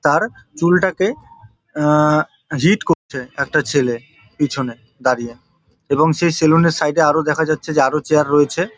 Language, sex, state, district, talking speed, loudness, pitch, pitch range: Bengali, male, West Bengal, Jalpaiguri, 150 wpm, -17 LUFS, 150 Hz, 140-165 Hz